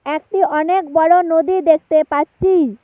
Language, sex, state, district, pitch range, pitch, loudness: Bengali, female, West Bengal, Alipurduar, 305-360 Hz, 325 Hz, -15 LUFS